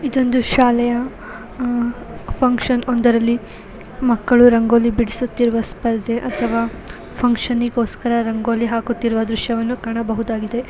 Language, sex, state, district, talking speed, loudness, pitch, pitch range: Kannada, female, Karnataka, Belgaum, 90 wpm, -18 LUFS, 235 Hz, 230-245 Hz